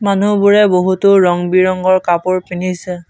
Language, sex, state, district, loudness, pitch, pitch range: Assamese, male, Assam, Sonitpur, -13 LUFS, 185 Hz, 180-200 Hz